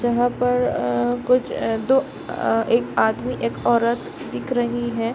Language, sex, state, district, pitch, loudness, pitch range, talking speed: Hindi, female, Bihar, Darbhanga, 240 Hz, -21 LUFS, 225-245 Hz, 130 wpm